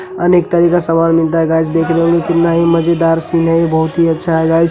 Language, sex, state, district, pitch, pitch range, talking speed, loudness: Hindi, male, Uttar Pradesh, Hamirpur, 165 Hz, 165-170 Hz, 280 wpm, -12 LUFS